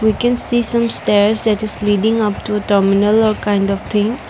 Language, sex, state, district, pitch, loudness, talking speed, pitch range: English, female, Assam, Kamrup Metropolitan, 215 Hz, -15 LUFS, 180 wpm, 205-225 Hz